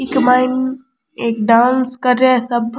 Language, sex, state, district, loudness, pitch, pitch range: Rajasthani, female, Rajasthan, Churu, -15 LUFS, 255 Hz, 240-260 Hz